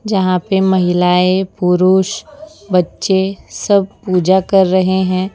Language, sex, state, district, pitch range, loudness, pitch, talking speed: Hindi, female, Gujarat, Valsad, 185-195 Hz, -14 LUFS, 190 Hz, 110 wpm